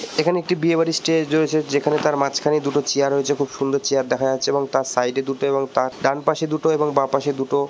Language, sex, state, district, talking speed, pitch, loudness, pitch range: Bengali, male, West Bengal, Purulia, 240 wpm, 140 Hz, -20 LUFS, 135-155 Hz